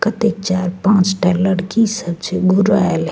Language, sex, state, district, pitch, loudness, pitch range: Maithili, female, Bihar, Begusarai, 190 Hz, -16 LUFS, 180-205 Hz